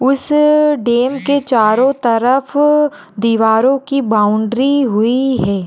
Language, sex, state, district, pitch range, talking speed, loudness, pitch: Hindi, female, Rajasthan, Churu, 225-275 Hz, 105 wpm, -13 LUFS, 260 Hz